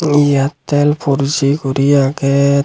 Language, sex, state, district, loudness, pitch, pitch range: Chakma, male, Tripura, Unakoti, -14 LUFS, 140 Hz, 140-145 Hz